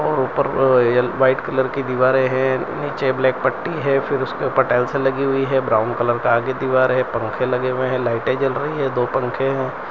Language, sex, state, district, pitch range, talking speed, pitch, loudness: Hindi, male, Gujarat, Valsad, 125-135 Hz, 205 wpm, 130 Hz, -19 LUFS